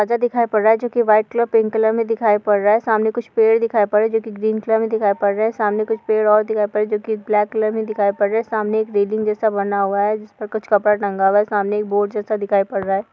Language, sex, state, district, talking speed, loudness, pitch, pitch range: Hindi, female, Bihar, Darbhanga, 315 wpm, -18 LUFS, 215 Hz, 205-220 Hz